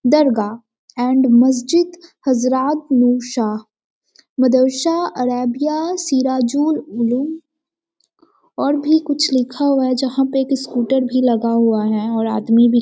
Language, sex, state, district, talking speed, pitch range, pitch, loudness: Hindi, female, Bihar, Sitamarhi, 115 wpm, 240-300 Hz, 260 Hz, -17 LUFS